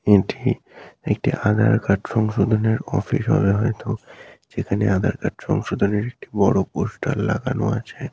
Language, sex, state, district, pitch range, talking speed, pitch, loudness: Bengali, male, West Bengal, Malda, 105-115 Hz, 120 wpm, 110 Hz, -21 LUFS